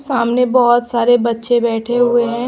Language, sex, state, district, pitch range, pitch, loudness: Hindi, female, Maharashtra, Washim, 235-245 Hz, 240 Hz, -14 LUFS